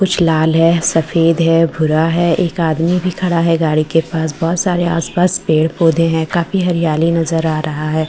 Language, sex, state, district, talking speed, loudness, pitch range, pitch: Hindi, female, Delhi, New Delhi, 200 wpm, -14 LUFS, 160-170 Hz, 165 Hz